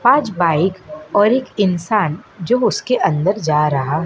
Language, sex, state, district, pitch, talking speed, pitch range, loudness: Hindi, male, Madhya Pradesh, Dhar, 185 Hz, 145 wpm, 155-215 Hz, -17 LUFS